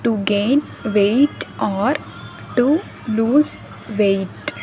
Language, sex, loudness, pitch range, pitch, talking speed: English, female, -19 LUFS, 205-275 Hz, 225 Hz, 90 wpm